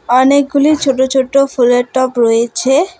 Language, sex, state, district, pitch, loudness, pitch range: Bengali, female, West Bengal, Alipurduar, 265 Hz, -12 LUFS, 245-280 Hz